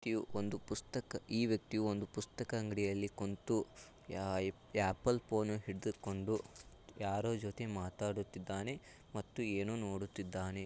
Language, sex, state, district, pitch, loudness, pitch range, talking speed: Kannada, male, Karnataka, Shimoga, 105 Hz, -40 LUFS, 100-110 Hz, 105 wpm